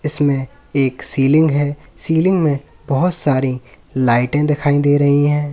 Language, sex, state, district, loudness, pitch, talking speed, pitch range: Hindi, male, Uttar Pradesh, Lalitpur, -16 LUFS, 145 Hz, 140 wpm, 135-150 Hz